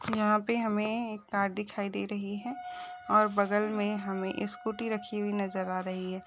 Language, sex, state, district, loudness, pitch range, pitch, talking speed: Hindi, female, Uttarakhand, Uttarkashi, -31 LUFS, 200-220 Hz, 210 Hz, 190 wpm